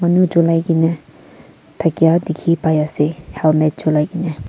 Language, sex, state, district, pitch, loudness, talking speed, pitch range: Nagamese, female, Nagaland, Kohima, 160 Hz, -16 LUFS, 105 wpm, 155-170 Hz